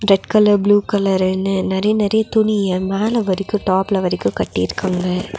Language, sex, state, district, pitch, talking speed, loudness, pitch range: Tamil, female, Tamil Nadu, Nilgiris, 195 Hz, 125 wpm, -17 LUFS, 185-210 Hz